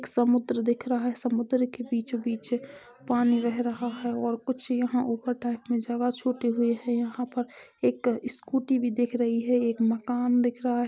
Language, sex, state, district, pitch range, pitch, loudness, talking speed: Hindi, female, Chhattisgarh, Korba, 235-245 Hz, 245 Hz, -27 LUFS, 200 wpm